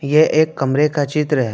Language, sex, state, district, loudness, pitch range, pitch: Hindi, male, West Bengal, Alipurduar, -16 LUFS, 140-155 Hz, 150 Hz